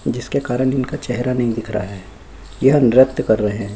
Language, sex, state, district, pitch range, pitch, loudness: Hindi, male, Chhattisgarh, Kabirdham, 105-130 Hz, 120 Hz, -17 LUFS